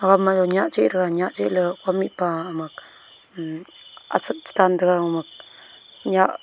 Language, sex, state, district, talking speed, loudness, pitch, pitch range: Wancho, female, Arunachal Pradesh, Longding, 170 wpm, -22 LUFS, 180 Hz, 170-190 Hz